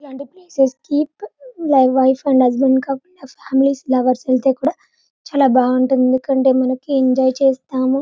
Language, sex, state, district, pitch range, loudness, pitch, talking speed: Telugu, female, Telangana, Karimnagar, 260-280 Hz, -16 LUFS, 265 Hz, 120 wpm